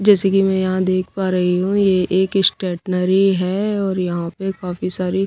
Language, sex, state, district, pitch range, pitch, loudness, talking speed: Hindi, female, Bihar, Kaimur, 180-195 Hz, 185 Hz, -18 LUFS, 195 wpm